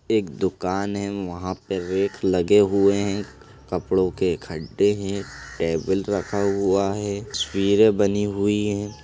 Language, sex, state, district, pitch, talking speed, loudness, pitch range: Hindi, male, Chhattisgarh, Sarguja, 100 Hz, 140 wpm, -23 LUFS, 95-100 Hz